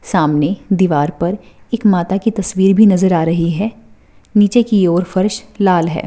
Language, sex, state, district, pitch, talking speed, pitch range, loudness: Hindi, female, Maharashtra, Pune, 190 Hz, 190 wpm, 175-205 Hz, -14 LUFS